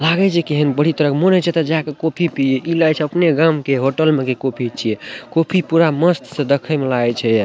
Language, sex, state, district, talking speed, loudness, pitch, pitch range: Maithili, male, Bihar, Madhepura, 255 wpm, -17 LUFS, 150 Hz, 135-165 Hz